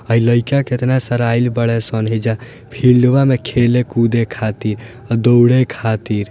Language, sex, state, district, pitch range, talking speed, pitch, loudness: Bhojpuri, male, Bihar, Gopalganj, 115-125 Hz, 115 wpm, 120 Hz, -15 LUFS